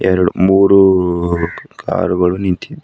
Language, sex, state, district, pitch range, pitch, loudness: Kannada, male, Karnataka, Bidar, 90-95 Hz, 90 Hz, -13 LUFS